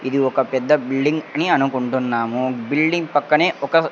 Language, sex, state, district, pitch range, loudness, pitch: Telugu, male, Andhra Pradesh, Sri Satya Sai, 130-150 Hz, -19 LUFS, 135 Hz